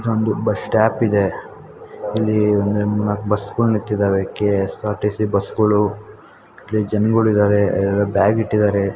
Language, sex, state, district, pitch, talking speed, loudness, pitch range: Kannada, female, Karnataka, Chamarajanagar, 105 Hz, 105 wpm, -18 LUFS, 100-110 Hz